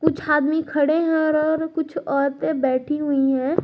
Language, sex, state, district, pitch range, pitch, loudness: Hindi, female, Jharkhand, Garhwa, 280-315 Hz, 300 Hz, -21 LUFS